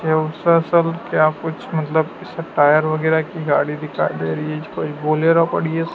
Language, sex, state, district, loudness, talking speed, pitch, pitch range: Hindi, male, Madhya Pradesh, Dhar, -19 LUFS, 160 wpm, 155 Hz, 155-165 Hz